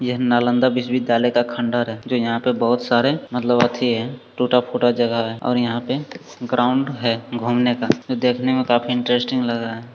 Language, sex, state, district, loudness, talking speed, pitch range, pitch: Hindi, male, Bihar, Jamui, -20 LUFS, 180 wpm, 120-125 Hz, 120 Hz